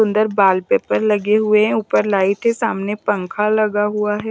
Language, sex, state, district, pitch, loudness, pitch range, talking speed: Hindi, female, Bihar, West Champaran, 210 Hz, -17 LUFS, 205-215 Hz, 180 wpm